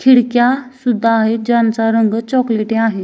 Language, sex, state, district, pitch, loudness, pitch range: Marathi, female, Maharashtra, Dhule, 230 Hz, -14 LUFS, 225-245 Hz